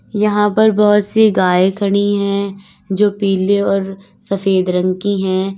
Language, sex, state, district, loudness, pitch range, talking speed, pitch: Hindi, female, Uttar Pradesh, Lalitpur, -15 LUFS, 190-205 Hz, 150 wpm, 200 Hz